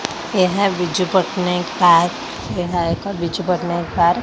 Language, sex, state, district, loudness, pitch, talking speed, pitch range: Odia, female, Odisha, Khordha, -18 LUFS, 180 Hz, 140 wpm, 175-185 Hz